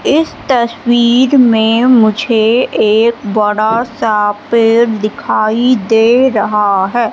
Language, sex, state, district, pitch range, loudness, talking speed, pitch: Hindi, female, Madhya Pradesh, Katni, 215-240 Hz, -11 LUFS, 100 wpm, 230 Hz